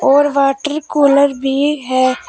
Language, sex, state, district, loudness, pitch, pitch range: Hindi, female, Uttar Pradesh, Shamli, -14 LUFS, 280 Hz, 270-290 Hz